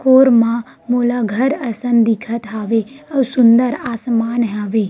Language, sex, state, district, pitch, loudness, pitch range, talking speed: Chhattisgarhi, female, Chhattisgarh, Rajnandgaon, 235 Hz, -16 LUFS, 225-250 Hz, 120 wpm